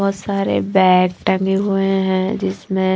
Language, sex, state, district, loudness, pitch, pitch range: Hindi, female, Haryana, Charkhi Dadri, -17 LUFS, 190 Hz, 185-195 Hz